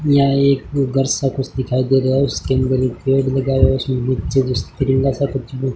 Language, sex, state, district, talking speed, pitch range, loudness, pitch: Hindi, male, Rajasthan, Bikaner, 190 wpm, 130-135 Hz, -17 LUFS, 135 Hz